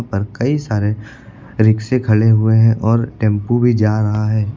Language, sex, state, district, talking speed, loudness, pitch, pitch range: Hindi, male, Uttar Pradesh, Lucknow, 170 wpm, -15 LUFS, 110 Hz, 110-115 Hz